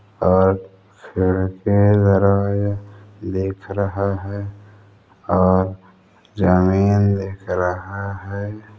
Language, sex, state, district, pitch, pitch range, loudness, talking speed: Hindi, male, Chhattisgarh, Balrampur, 100 Hz, 95-100 Hz, -19 LUFS, 70 wpm